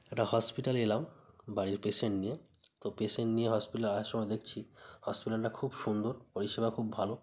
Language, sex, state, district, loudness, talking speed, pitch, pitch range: Bengali, male, West Bengal, North 24 Parganas, -35 LUFS, 180 wpm, 110 Hz, 105-115 Hz